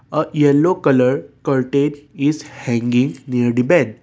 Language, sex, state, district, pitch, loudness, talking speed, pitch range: English, male, Assam, Kamrup Metropolitan, 140 Hz, -17 LUFS, 135 wpm, 125-145 Hz